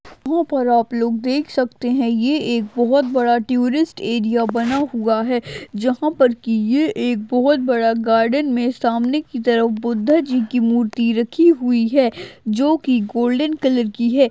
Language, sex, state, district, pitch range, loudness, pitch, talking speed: Hindi, female, Maharashtra, Aurangabad, 230-270 Hz, -18 LUFS, 245 Hz, 170 wpm